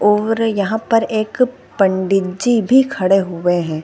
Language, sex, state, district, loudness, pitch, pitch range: Hindi, female, Chhattisgarh, Bilaspur, -16 LUFS, 210 Hz, 190-225 Hz